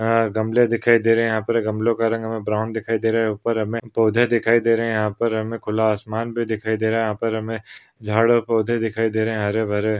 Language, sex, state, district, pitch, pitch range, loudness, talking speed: Hindi, male, Maharashtra, Pune, 115 Hz, 110-115 Hz, -21 LUFS, 275 wpm